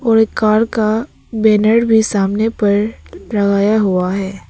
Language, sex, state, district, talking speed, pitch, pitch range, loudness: Hindi, female, Arunachal Pradesh, Papum Pare, 145 wpm, 215 Hz, 200-220 Hz, -15 LUFS